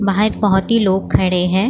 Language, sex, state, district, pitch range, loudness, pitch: Hindi, female, Maharashtra, Mumbai Suburban, 190-210 Hz, -15 LUFS, 195 Hz